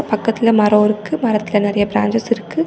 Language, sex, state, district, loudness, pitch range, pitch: Tamil, female, Tamil Nadu, Nilgiris, -16 LUFS, 210-230 Hz, 215 Hz